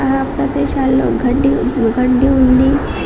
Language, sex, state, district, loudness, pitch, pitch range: Telugu, female, Telangana, Karimnagar, -14 LUFS, 265 Hz, 255-270 Hz